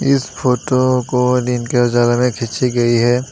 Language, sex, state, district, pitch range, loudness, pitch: Hindi, male, Assam, Sonitpur, 120-130 Hz, -15 LUFS, 125 Hz